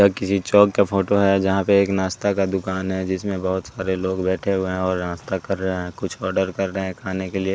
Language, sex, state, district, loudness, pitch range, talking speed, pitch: Hindi, male, Bihar, West Champaran, -21 LUFS, 95-100 Hz, 255 wpm, 95 Hz